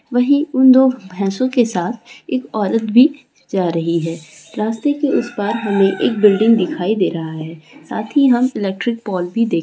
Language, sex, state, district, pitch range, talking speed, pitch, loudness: Hindi, female, Chhattisgarh, Raigarh, 185-255 Hz, 185 wpm, 220 Hz, -16 LUFS